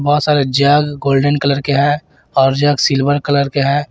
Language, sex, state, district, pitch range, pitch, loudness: Hindi, male, Jharkhand, Garhwa, 140-145 Hz, 145 Hz, -14 LUFS